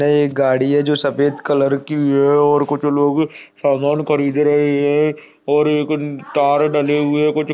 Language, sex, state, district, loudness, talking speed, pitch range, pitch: Hindi, male, Chhattisgarh, Sarguja, -16 LUFS, 165 wpm, 145-150 Hz, 145 Hz